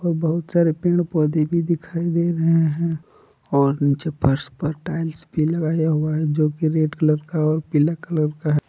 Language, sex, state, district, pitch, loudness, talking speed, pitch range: Hindi, male, Jharkhand, Palamu, 160 Hz, -21 LUFS, 185 wpm, 150-165 Hz